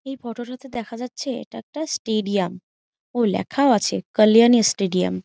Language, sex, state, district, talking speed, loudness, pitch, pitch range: Bengali, female, West Bengal, Jhargram, 160 wpm, -21 LUFS, 230 Hz, 200-255 Hz